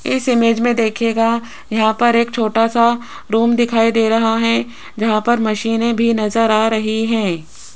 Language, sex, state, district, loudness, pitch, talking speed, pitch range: Hindi, female, Rajasthan, Jaipur, -16 LUFS, 225 Hz, 170 wpm, 220-235 Hz